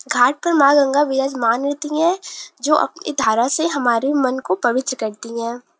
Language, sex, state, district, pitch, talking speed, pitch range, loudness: Hindi, female, Uttar Pradesh, Varanasi, 270 Hz, 175 wpm, 240-300 Hz, -18 LUFS